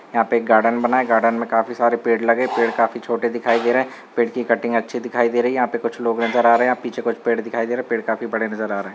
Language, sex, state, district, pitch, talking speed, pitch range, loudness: Hindi, male, Bihar, Sitamarhi, 115 Hz, 310 wpm, 115-120 Hz, -19 LUFS